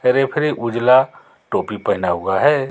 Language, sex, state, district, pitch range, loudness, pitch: Hindi, male, Jharkhand, Garhwa, 115-135 Hz, -18 LUFS, 125 Hz